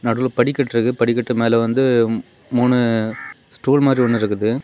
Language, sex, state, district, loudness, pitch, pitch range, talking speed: Tamil, male, Tamil Nadu, Kanyakumari, -18 LUFS, 120 Hz, 115-125 Hz, 140 wpm